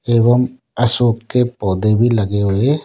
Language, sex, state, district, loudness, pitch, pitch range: Hindi, male, Rajasthan, Jaipur, -16 LUFS, 120 Hz, 105-125 Hz